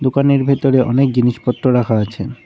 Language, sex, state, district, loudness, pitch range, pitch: Bengali, male, West Bengal, Cooch Behar, -15 LUFS, 120-135 Hz, 130 Hz